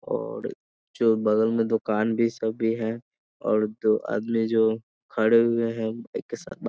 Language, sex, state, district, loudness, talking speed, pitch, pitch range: Hindi, male, Bihar, Sitamarhi, -25 LUFS, 160 wpm, 115 Hz, 110-115 Hz